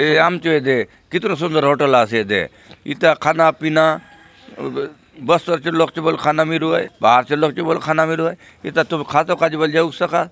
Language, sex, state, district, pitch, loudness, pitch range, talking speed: Halbi, male, Chhattisgarh, Bastar, 160 Hz, -17 LUFS, 155-165 Hz, 140 wpm